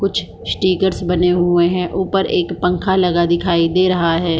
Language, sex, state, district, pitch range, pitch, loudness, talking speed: Hindi, female, Bihar, East Champaran, 170-185 Hz, 180 Hz, -16 LUFS, 175 wpm